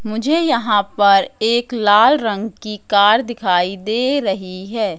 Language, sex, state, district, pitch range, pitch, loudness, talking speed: Hindi, female, Madhya Pradesh, Katni, 200-235 Hz, 215 Hz, -16 LUFS, 145 wpm